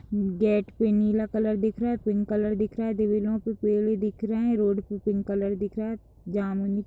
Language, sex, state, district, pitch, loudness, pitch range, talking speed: Hindi, female, Uttar Pradesh, Deoria, 210 Hz, -26 LUFS, 205-220 Hz, 225 wpm